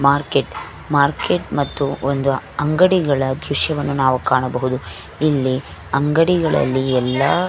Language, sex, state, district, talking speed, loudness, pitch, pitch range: Kannada, female, Karnataka, Belgaum, 95 wpm, -18 LUFS, 140 Hz, 130-150 Hz